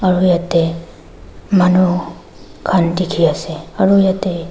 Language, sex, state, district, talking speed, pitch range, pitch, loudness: Nagamese, female, Nagaland, Dimapur, 105 wpm, 170-185 Hz, 180 Hz, -15 LUFS